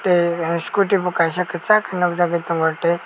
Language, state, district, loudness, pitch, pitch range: Kokborok, Tripura, West Tripura, -19 LUFS, 175 Hz, 170-180 Hz